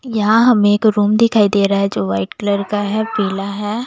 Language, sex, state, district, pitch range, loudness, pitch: Hindi, female, Chandigarh, Chandigarh, 200-220 Hz, -15 LUFS, 205 Hz